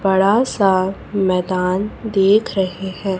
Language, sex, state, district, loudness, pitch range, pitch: Hindi, female, Chhattisgarh, Raipur, -17 LUFS, 185-205 Hz, 195 Hz